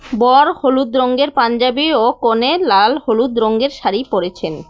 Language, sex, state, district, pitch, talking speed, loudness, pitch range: Bengali, female, West Bengal, Cooch Behar, 260 Hz, 140 wpm, -14 LUFS, 235-280 Hz